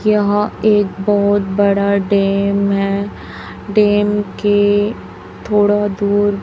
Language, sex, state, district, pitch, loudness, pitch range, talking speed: Hindi, female, Chhattisgarh, Raipur, 205 Hz, -15 LUFS, 200-205 Hz, 95 wpm